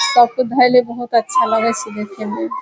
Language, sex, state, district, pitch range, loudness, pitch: Hindi, female, Bihar, Sitamarhi, 220-255 Hz, -16 LUFS, 240 Hz